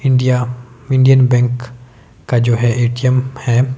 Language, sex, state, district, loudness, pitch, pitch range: Hindi, male, Himachal Pradesh, Shimla, -14 LUFS, 125 Hz, 120-130 Hz